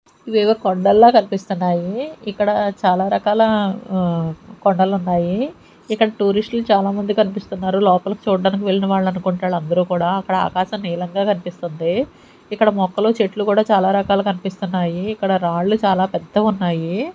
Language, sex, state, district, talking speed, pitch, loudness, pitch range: Telugu, female, Andhra Pradesh, Sri Satya Sai, 130 wpm, 195 Hz, -18 LUFS, 185-210 Hz